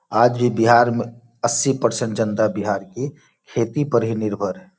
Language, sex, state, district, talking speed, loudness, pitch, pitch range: Hindi, male, Bihar, Gopalganj, 175 wpm, -20 LUFS, 120 Hz, 110-125 Hz